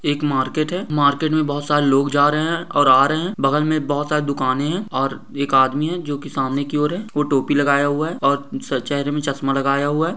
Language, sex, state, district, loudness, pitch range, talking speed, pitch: Hindi, male, Maharashtra, Dhule, -19 LUFS, 140-155 Hz, 255 wpm, 145 Hz